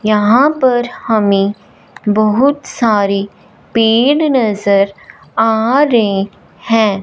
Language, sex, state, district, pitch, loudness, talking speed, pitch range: Hindi, female, Punjab, Fazilka, 220 Hz, -13 LUFS, 85 wpm, 205-240 Hz